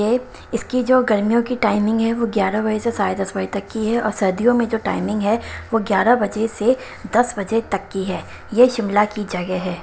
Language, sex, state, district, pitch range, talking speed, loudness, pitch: Hindi, female, Himachal Pradesh, Shimla, 200-235 Hz, 215 wpm, -19 LUFS, 215 Hz